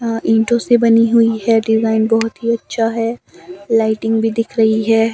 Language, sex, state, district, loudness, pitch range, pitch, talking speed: Hindi, female, Himachal Pradesh, Shimla, -15 LUFS, 225-230 Hz, 225 Hz, 185 wpm